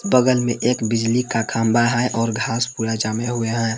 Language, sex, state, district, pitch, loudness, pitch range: Hindi, male, Jharkhand, Palamu, 115 Hz, -20 LUFS, 115-120 Hz